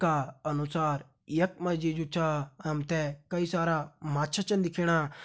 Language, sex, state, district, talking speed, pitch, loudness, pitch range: Hindi, male, Uttarakhand, Uttarkashi, 160 wpm, 160 Hz, -31 LUFS, 150-170 Hz